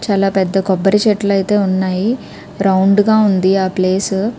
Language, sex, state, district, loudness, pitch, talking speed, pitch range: Telugu, female, Andhra Pradesh, Krishna, -14 LUFS, 195 Hz, 150 wpm, 190-205 Hz